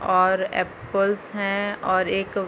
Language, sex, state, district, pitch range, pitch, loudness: Hindi, female, Chhattisgarh, Bilaspur, 190-200 Hz, 195 Hz, -23 LUFS